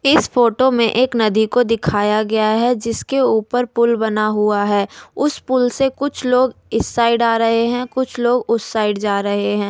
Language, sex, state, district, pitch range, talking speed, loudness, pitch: Hindi, female, Delhi, New Delhi, 215-250 Hz, 200 wpm, -17 LUFS, 230 Hz